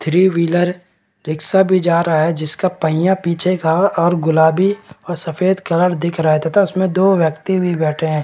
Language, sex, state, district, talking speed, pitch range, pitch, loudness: Hindi, male, Bihar, Kishanganj, 190 wpm, 160-185 Hz, 170 Hz, -15 LUFS